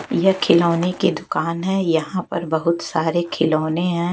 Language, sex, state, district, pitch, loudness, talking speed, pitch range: Hindi, female, Chhattisgarh, Raipur, 170 Hz, -20 LUFS, 160 wpm, 160-175 Hz